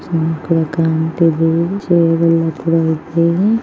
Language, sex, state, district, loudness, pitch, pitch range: Kannada, female, Karnataka, Bijapur, -15 LUFS, 165 Hz, 160-170 Hz